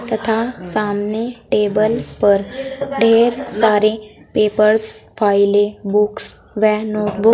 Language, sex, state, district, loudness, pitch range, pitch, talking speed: Hindi, female, Uttar Pradesh, Saharanpur, -17 LUFS, 210-225 Hz, 215 Hz, 100 wpm